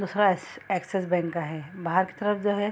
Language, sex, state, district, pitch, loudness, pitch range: Hindi, female, Bihar, Saharsa, 185 Hz, -27 LUFS, 175-205 Hz